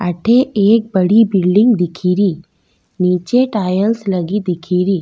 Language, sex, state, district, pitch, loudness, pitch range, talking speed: Rajasthani, female, Rajasthan, Nagaur, 190 Hz, -14 LUFS, 180-215 Hz, 110 wpm